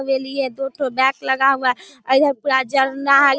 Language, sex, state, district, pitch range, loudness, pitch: Hindi, female, Bihar, Darbhanga, 265-275 Hz, -18 LUFS, 270 Hz